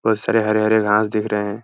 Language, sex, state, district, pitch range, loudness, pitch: Hindi, male, Uttar Pradesh, Hamirpur, 105-110 Hz, -18 LUFS, 110 Hz